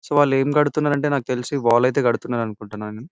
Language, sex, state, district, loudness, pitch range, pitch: Telugu, male, Telangana, Karimnagar, -20 LUFS, 115-145 Hz, 130 Hz